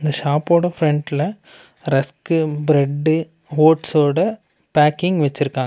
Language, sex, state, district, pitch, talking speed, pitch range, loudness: Tamil, male, Tamil Nadu, Namakkal, 155 Hz, 75 wpm, 145-165 Hz, -18 LUFS